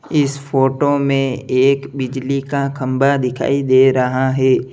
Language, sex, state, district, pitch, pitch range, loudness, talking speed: Hindi, male, Uttar Pradesh, Lalitpur, 135 Hz, 130-140 Hz, -16 LUFS, 140 wpm